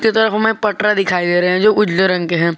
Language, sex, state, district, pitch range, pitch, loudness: Hindi, male, Jharkhand, Garhwa, 180-215 Hz, 205 Hz, -14 LUFS